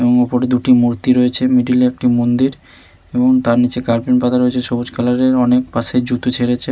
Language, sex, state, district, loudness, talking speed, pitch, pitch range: Bengali, male, West Bengal, Malda, -15 LUFS, 195 wpm, 125 Hz, 120-125 Hz